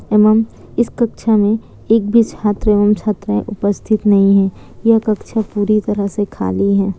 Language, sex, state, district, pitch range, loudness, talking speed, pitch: Hindi, female, Bihar, Kishanganj, 200-220 Hz, -15 LUFS, 165 wpm, 210 Hz